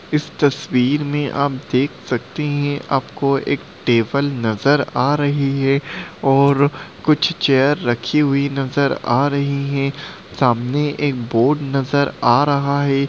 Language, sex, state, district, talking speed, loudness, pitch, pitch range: Hindi, male, Bihar, Lakhisarai, 135 wpm, -18 LUFS, 140 Hz, 135-145 Hz